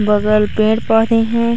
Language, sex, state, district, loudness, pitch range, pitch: Hindi, female, Chhattisgarh, Raigarh, -14 LUFS, 215-230 Hz, 220 Hz